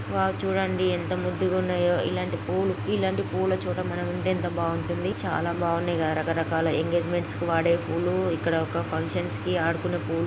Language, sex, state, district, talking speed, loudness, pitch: Telugu, female, Andhra Pradesh, Guntur, 150 wpm, -26 LUFS, 100 Hz